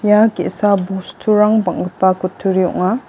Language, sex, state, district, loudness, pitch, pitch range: Garo, female, Meghalaya, West Garo Hills, -16 LUFS, 190 Hz, 185-210 Hz